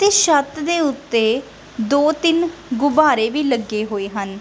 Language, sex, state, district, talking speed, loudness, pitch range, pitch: Punjabi, female, Punjab, Kapurthala, 150 wpm, -18 LUFS, 225-310 Hz, 285 Hz